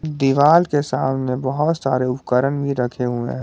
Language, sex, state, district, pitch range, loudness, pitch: Hindi, male, Jharkhand, Garhwa, 125-145 Hz, -19 LUFS, 135 Hz